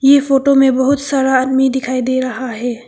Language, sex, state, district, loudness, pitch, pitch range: Hindi, female, Arunachal Pradesh, Papum Pare, -14 LUFS, 265 Hz, 255-270 Hz